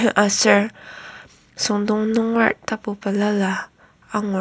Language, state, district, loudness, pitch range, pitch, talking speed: Ao, Nagaland, Kohima, -20 LUFS, 205-220 Hz, 210 Hz, 80 wpm